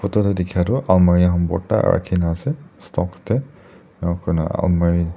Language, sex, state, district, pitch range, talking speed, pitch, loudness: Nagamese, male, Nagaland, Dimapur, 85-100 Hz, 175 wpm, 90 Hz, -19 LUFS